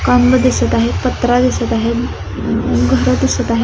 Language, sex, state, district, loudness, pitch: Marathi, female, Maharashtra, Solapur, -14 LUFS, 235 Hz